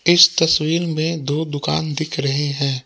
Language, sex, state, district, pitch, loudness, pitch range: Hindi, male, Jharkhand, Palamu, 155 Hz, -18 LUFS, 145-165 Hz